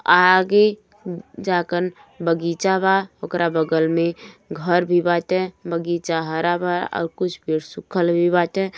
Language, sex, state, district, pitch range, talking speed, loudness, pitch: Bhojpuri, female, Uttar Pradesh, Gorakhpur, 170-185 Hz, 135 wpm, -20 LUFS, 175 Hz